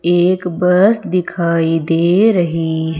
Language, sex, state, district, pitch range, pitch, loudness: Hindi, female, Madhya Pradesh, Umaria, 165-180 Hz, 175 Hz, -14 LUFS